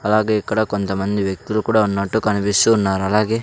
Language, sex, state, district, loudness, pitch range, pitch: Telugu, male, Andhra Pradesh, Sri Satya Sai, -18 LUFS, 100-110 Hz, 105 Hz